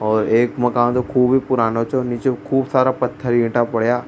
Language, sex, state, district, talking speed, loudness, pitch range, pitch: Rajasthani, male, Rajasthan, Churu, 205 wpm, -18 LUFS, 120-130 Hz, 125 Hz